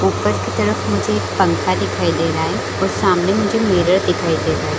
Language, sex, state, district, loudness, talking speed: Hindi, female, Chhattisgarh, Bilaspur, -17 LUFS, 225 wpm